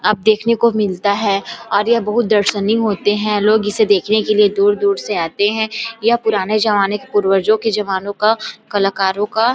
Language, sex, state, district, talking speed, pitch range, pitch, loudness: Hindi, female, Chhattisgarh, Bilaspur, 205 wpm, 200-220 Hz, 210 Hz, -16 LUFS